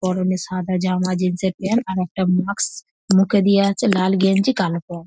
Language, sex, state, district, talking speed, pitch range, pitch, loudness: Bengali, female, West Bengal, North 24 Parganas, 200 wpm, 185-200 Hz, 185 Hz, -19 LUFS